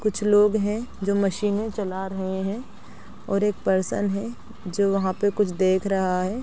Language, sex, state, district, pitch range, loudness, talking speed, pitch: Hindi, female, Bihar, East Champaran, 190-210 Hz, -24 LUFS, 175 wpm, 200 Hz